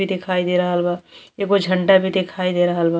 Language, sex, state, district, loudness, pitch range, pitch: Bhojpuri, female, Uttar Pradesh, Deoria, -19 LUFS, 175-190 Hz, 180 Hz